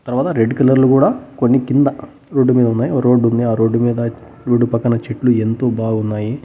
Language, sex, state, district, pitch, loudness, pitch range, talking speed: Telugu, male, Andhra Pradesh, Annamaya, 120 Hz, -15 LUFS, 115-130 Hz, 185 wpm